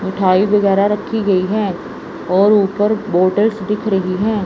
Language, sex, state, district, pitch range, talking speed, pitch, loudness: Hindi, female, Chandigarh, Chandigarh, 190-210 Hz, 150 wpm, 200 Hz, -15 LUFS